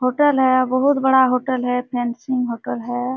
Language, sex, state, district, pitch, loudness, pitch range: Hindi, female, Jharkhand, Sahebganj, 255 Hz, -19 LUFS, 245-260 Hz